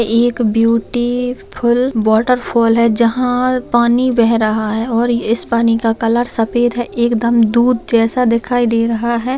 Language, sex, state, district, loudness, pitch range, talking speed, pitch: Hindi, female, Bihar, Begusarai, -14 LUFS, 230-245 Hz, 160 wpm, 235 Hz